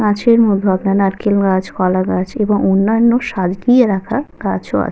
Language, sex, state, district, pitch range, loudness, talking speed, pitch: Bengali, female, West Bengal, Jalpaiguri, 190-230 Hz, -14 LUFS, 160 wpm, 200 Hz